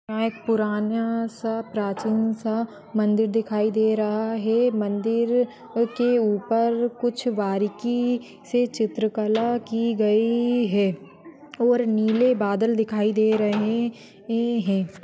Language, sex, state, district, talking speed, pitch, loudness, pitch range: Hindi, female, Maharashtra, Nagpur, 110 wpm, 225 Hz, -23 LUFS, 215-235 Hz